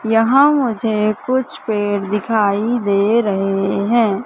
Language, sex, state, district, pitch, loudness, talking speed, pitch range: Hindi, female, Madhya Pradesh, Katni, 215 Hz, -16 LUFS, 115 wpm, 205-235 Hz